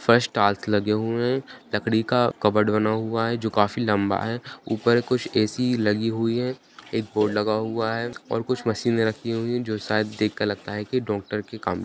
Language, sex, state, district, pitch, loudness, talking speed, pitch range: Hindi, male, Bihar, Jamui, 110 Hz, -24 LUFS, 220 wpm, 105-120 Hz